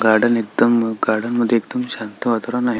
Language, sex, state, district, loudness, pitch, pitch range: Marathi, male, Maharashtra, Sindhudurg, -18 LUFS, 115 Hz, 110-120 Hz